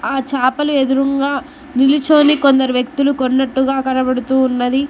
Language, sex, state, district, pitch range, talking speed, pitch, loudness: Telugu, female, Telangana, Mahabubabad, 260-280 Hz, 110 wpm, 270 Hz, -15 LUFS